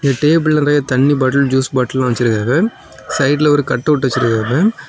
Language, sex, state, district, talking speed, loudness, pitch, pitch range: Tamil, male, Tamil Nadu, Kanyakumari, 135 wpm, -14 LUFS, 140 Hz, 130-150 Hz